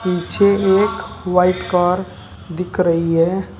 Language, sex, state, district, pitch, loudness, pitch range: Hindi, male, Uttar Pradesh, Shamli, 180 Hz, -17 LUFS, 175-190 Hz